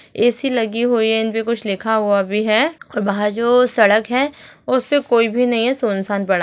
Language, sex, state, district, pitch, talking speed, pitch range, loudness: Hindi, female, Chhattisgarh, Rajnandgaon, 225 Hz, 205 wpm, 210-245 Hz, -17 LUFS